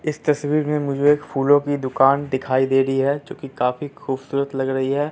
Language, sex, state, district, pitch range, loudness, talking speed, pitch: Hindi, male, Bihar, Katihar, 135-145 Hz, -20 LUFS, 220 wpm, 140 Hz